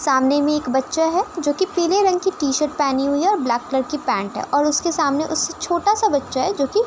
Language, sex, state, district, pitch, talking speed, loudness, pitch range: Hindi, female, Uttar Pradesh, Budaun, 300 Hz, 260 wpm, -19 LUFS, 275-345 Hz